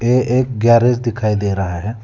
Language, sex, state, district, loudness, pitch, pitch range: Hindi, male, Telangana, Hyderabad, -16 LUFS, 115 Hz, 105-125 Hz